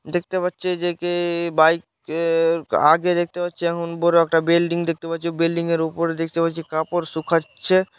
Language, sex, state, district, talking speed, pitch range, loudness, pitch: Bengali, male, West Bengal, Malda, 165 wpm, 165-175 Hz, -20 LUFS, 170 Hz